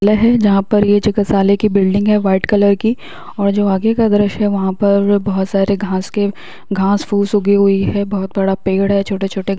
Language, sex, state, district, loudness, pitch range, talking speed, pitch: Hindi, female, Bihar, Muzaffarpur, -14 LUFS, 195-205 Hz, 230 wpm, 200 Hz